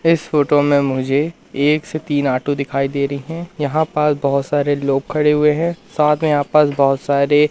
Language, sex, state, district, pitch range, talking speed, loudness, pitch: Hindi, male, Madhya Pradesh, Katni, 140-150 Hz, 210 wpm, -17 LUFS, 145 Hz